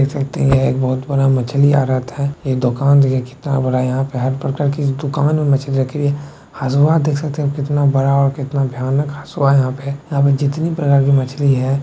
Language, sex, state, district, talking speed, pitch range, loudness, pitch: Maithili, male, Bihar, Bhagalpur, 230 wpm, 135-145 Hz, -16 LUFS, 140 Hz